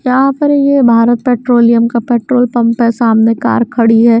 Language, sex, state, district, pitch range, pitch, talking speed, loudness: Hindi, female, Bihar, West Champaran, 230-250 Hz, 235 Hz, 185 wpm, -10 LUFS